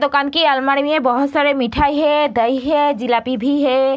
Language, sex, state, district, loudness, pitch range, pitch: Hindi, female, Bihar, Begusarai, -16 LUFS, 260-290 Hz, 280 Hz